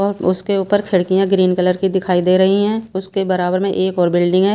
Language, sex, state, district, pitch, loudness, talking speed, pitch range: Hindi, female, Himachal Pradesh, Shimla, 190 Hz, -16 LUFS, 240 wpm, 185-195 Hz